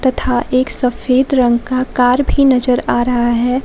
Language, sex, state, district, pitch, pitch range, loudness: Hindi, female, Jharkhand, Palamu, 250 Hz, 245-260 Hz, -14 LUFS